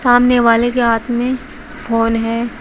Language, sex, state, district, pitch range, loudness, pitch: Hindi, female, Uttar Pradesh, Shamli, 230-250 Hz, -15 LUFS, 240 Hz